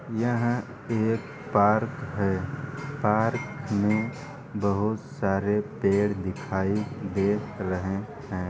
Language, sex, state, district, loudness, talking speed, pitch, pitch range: Hindi, male, Uttar Pradesh, Ghazipur, -27 LUFS, 90 wpm, 105 Hz, 100-120 Hz